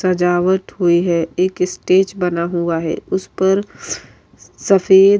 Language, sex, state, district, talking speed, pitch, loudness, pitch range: Urdu, female, Uttar Pradesh, Budaun, 140 wpm, 185 Hz, -16 LUFS, 175-190 Hz